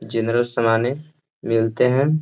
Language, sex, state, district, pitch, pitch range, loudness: Hindi, male, Bihar, Gaya, 120 Hz, 115-145 Hz, -20 LUFS